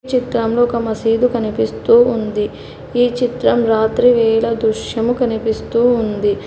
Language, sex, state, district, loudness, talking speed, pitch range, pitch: Telugu, female, Telangana, Hyderabad, -16 LUFS, 100 wpm, 220-240 Hz, 230 Hz